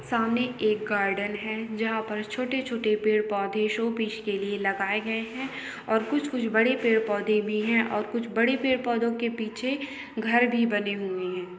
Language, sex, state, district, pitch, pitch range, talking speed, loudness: Hindi, female, West Bengal, Purulia, 220 Hz, 210-235 Hz, 185 wpm, -27 LUFS